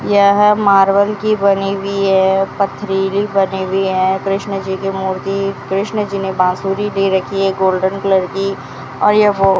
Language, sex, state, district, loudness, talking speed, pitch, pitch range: Hindi, female, Rajasthan, Bikaner, -15 LUFS, 175 wpm, 195 Hz, 190-200 Hz